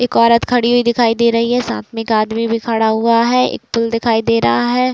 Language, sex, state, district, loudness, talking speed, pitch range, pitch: Hindi, female, Uttar Pradesh, Varanasi, -14 LUFS, 265 wpm, 225-240 Hz, 230 Hz